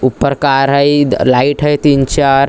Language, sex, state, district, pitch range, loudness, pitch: Hindi, male, Maharashtra, Gondia, 135-145 Hz, -11 LUFS, 140 Hz